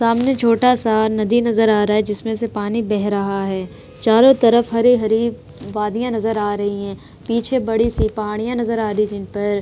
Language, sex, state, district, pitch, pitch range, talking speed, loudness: Hindi, female, Uttar Pradesh, Etah, 220 Hz, 210-230 Hz, 200 wpm, -18 LUFS